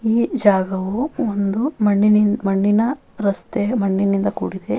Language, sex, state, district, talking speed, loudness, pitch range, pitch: Kannada, female, Karnataka, Bellary, 100 wpm, -19 LUFS, 200-230 Hz, 210 Hz